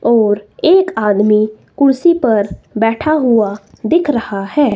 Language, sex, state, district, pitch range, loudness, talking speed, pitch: Hindi, female, Himachal Pradesh, Shimla, 210-290 Hz, -14 LUFS, 125 wpm, 225 Hz